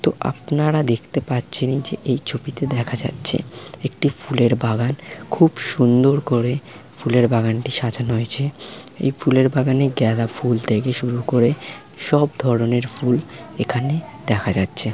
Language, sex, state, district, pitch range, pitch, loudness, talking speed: Bengali, male, West Bengal, Malda, 120-140 Hz, 125 Hz, -20 LUFS, 135 wpm